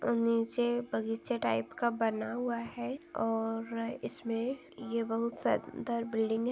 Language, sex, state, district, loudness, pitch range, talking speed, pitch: Hindi, female, Chhattisgarh, Balrampur, -34 LUFS, 225-240 Hz, 140 wpm, 230 Hz